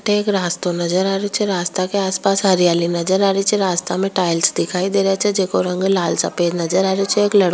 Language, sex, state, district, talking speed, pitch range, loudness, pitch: Rajasthani, female, Rajasthan, Churu, 245 wpm, 180-195 Hz, -17 LUFS, 190 Hz